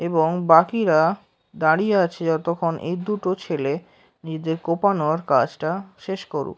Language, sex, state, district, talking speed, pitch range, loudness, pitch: Bengali, male, West Bengal, Kolkata, 120 wpm, 160-190 Hz, -21 LUFS, 170 Hz